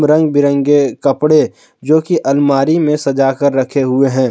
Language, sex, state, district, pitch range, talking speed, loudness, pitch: Hindi, male, Jharkhand, Palamu, 135-150 Hz, 165 wpm, -13 LUFS, 140 Hz